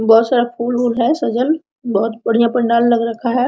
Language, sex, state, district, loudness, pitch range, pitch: Hindi, female, Jharkhand, Sahebganj, -16 LUFS, 230-245 Hz, 235 Hz